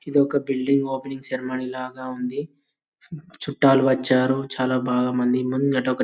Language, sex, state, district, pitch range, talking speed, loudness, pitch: Telugu, male, Telangana, Karimnagar, 130-140 Hz, 150 wpm, -23 LUFS, 130 Hz